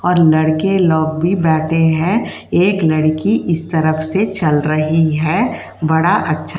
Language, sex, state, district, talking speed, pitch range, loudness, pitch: Hindi, female, Uttar Pradesh, Jyotiba Phule Nagar, 155 wpm, 155-180 Hz, -14 LUFS, 160 Hz